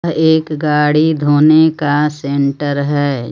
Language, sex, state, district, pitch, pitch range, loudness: Hindi, female, Jharkhand, Palamu, 150 Hz, 145-155 Hz, -13 LUFS